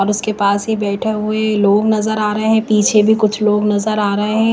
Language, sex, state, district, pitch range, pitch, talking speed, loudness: Hindi, female, Himachal Pradesh, Shimla, 205-220 Hz, 210 Hz, 250 wpm, -15 LUFS